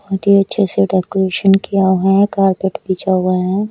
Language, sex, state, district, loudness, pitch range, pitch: Hindi, male, Odisha, Nuapada, -14 LUFS, 185-195 Hz, 195 Hz